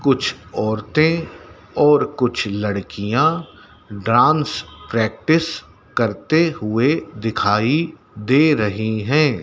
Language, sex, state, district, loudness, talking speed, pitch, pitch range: Hindi, male, Madhya Pradesh, Dhar, -19 LUFS, 85 wpm, 125 Hz, 105-155 Hz